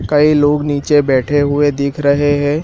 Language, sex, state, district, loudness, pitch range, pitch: Hindi, male, Madhya Pradesh, Dhar, -13 LUFS, 140-145 Hz, 145 Hz